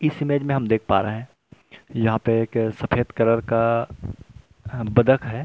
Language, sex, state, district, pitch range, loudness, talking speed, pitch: Hindi, male, Chhattisgarh, Rajnandgaon, 110-130 Hz, -22 LUFS, 175 wpm, 115 Hz